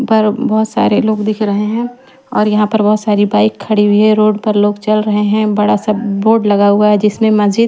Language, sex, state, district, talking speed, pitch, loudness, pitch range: Hindi, female, Chhattisgarh, Raipur, 240 wpm, 215 Hz, -12 LUFS, 210-220 Hz